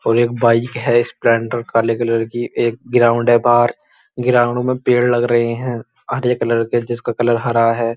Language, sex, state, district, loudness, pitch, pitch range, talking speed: Hindi, male, Uttar Pradesh, Muzaffarnagar, -16 LUFS, 120 Hz, 115-120 Hz, 190 wpm